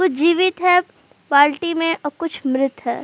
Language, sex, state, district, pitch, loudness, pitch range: Hindi, female, Uttar Pradesh, Jalaun, 330 Hz, -18 LUFS, 285-350 Hz